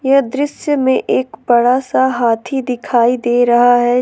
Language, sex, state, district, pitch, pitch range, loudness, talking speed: Hindi, female, Jharkhand, Ranchi, 250 Hz, 240-265 Hz, -14 LUFS, 165 wpm